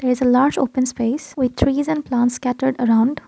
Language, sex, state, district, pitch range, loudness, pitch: English, female, Assam, Kamrup Metropolitan, 245-275 Hz, -19 LUFS, 255 Hz